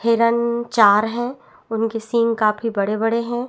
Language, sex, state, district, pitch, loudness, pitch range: Hindi, female, Chhattisgarh, Bastar, 230 Hz, -19 LUFS, 225-235 Hz